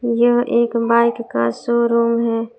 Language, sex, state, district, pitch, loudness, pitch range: Hindi, female, Jharkhand, Palamu, 235 Hz, -17 LUFS, 230-235 Hz